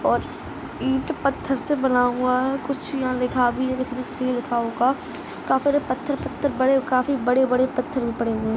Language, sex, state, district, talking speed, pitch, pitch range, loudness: Hindi, female, Rajasthan, Nagaur, 125 wpm, 255 Hz, 250-275 Hz, -23 LUFS